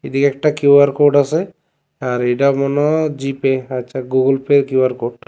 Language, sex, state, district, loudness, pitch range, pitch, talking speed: Bengali, male, Tripura, West Tripura, -15 LUFS, 130-145 Hz, 140 Hz, 205 wpm